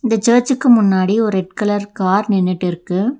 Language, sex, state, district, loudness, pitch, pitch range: Tamil, female, Tamil Nadu, Nilgiris, -15 LUFS, 205 Hz, 185-230 Hz